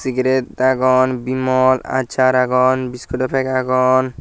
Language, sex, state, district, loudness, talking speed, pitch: Chakma, male, Tripura, Dhalai, -16 LUFS, 115 wpm, 130 Hz